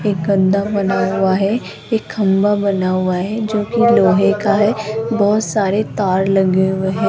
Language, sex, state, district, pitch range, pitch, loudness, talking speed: Hindi, female, Rajasthan, Jaipur, 190-215 Hz, 200 Hz, -16 LUFS, 170 wpm